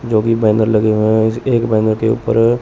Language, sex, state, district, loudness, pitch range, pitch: Hindi, male, Chandigarh, Chandigarh, -14 LUFS, 110-115 Hz, 110 Hz